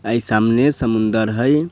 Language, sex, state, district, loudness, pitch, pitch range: Bhojpuri, male, Bihar, Sitamarhi, -17 LUFS, 115 Hz, 110-135 Hz